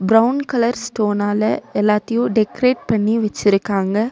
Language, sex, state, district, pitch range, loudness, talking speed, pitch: Tamil, female, Tamil Nadu, Nilgiris, 205-235 Hz, -18 LUFS, 100 wpm, 220 Hz